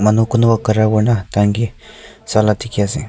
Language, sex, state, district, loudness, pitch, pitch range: Nagamese, male, Nagaland, Kohima, -16 LUFS, 110 Hz, 105-115 Hz